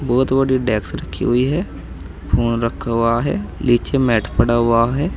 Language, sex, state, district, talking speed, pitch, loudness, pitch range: Hindi, male, Uttar Pradesh, Saharanpur, 175 wpm, 115 Hz, -18 LUFS, 110-130 Hz